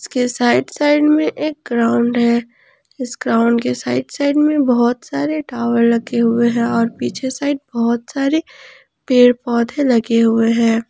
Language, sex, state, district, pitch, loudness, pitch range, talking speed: Hindi, female, Jharkhand, Palamu, 240 Hz, -16 LUFS, 235-285 Hz, 160 wpm